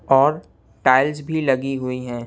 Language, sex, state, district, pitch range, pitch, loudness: Hindi, male, Punjab, Kapurthala, 120-140 Hz, 130 Hz, -20 LUFS